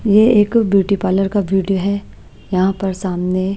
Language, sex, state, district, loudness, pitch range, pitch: Hindi, female, Maharashtra, Washim, -16 LUFS, 190-205 Hz, 195 Hz